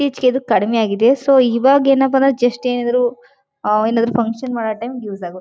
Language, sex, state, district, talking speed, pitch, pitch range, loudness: Kannada, female, Karnataka, Chamarajanagar, 180 wpm, 245 Hz, 225-265 Hz, -16 LUFS